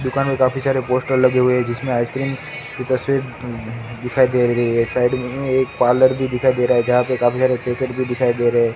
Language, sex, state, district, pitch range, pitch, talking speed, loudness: Hindi, male, Gujarat, Gandhinagar, 120-130 Hz, 125 Hz, 235 wpm, -18 LUFS